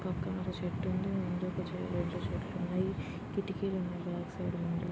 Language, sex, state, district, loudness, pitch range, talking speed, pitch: Telugu, female, Andhra Pradesh, Guntur, -36 LUFS, 175-190 Hz, 110 wpm, 180 Hz